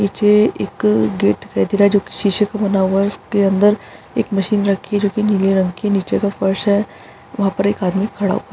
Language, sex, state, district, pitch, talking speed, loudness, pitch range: Hindi, female, Bihar, Araria, 200 Hz, 245 wpm, -17 LUFS, 195-205 Hz